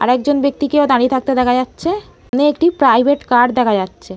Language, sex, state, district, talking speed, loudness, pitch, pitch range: Bengali, female, West Bengal, Malda, 185 wpm, -14 LUFS, 260 Hz, 245-285 Hz